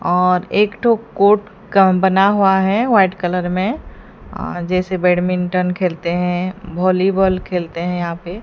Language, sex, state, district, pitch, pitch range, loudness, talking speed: Hindi, female, Odisha, Sambalpur, 185 Hz, 180-195 Hz, -16 LUFS, 140 wpm